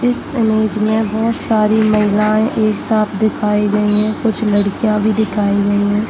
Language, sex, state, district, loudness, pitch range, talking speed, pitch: Hindi, female, Chhattisgarh, Bastar, -15 LUFS, 210-220 Hz, 165 wpm, 215 Hz